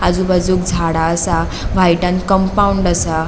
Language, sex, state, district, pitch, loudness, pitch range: Konkani, female, Goa, North and South Goa, 180 Hz, -15 LUFS, 170-185 Hz